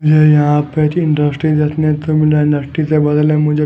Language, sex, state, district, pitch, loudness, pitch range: Hindi, male, Punjab, Fazilka, 150 Hz, -13 LUFS, 150-155 Hz